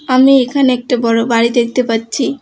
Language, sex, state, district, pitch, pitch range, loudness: Bengali, female, West Bengal, Alipurduar, 245 Hz, 230-260 Hz, -13 LUFS